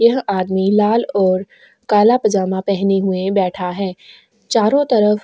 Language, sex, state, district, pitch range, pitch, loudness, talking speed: Hindi, female, Goa, North and South Goa, 190-210 Hz, 195 Hz, -16 LUFS, 135 wpm